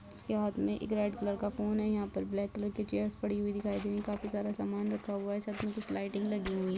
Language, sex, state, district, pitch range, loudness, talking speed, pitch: Hindi, female, Chhattisgarh, Bastar, 185-210 Hz, -35 LUFS, 265 wpm, 205 Hz